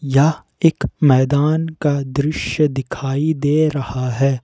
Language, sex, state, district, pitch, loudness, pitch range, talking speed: Hindi, male, Jharkhand, Ranchi, 140 Hz, -18 LUFS, 135-155 Hz, 120 wpm